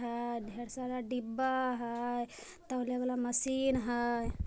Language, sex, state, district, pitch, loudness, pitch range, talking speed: Magahi, female, Bihar, Jamui, 245 Hz, -35 LUFS, 240-255 Hz, 135 wpm